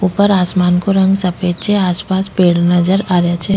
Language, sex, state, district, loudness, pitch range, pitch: Rajasthani, female, Rajasthan, Nagaur, -13 LUFS, 180-195 Hz, 185 Hz